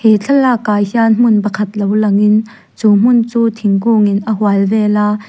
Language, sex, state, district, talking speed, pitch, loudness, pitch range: Mizo, female, Mizoram, Aizawl, 180 wpm, 215 Hz, -12 LUFS, 210-225 Hz